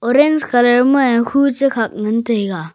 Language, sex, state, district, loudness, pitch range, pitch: Wancho, male, Arunachal Pradesh, Longding, -14 LUFS, 225-275 Hz, 245 Hz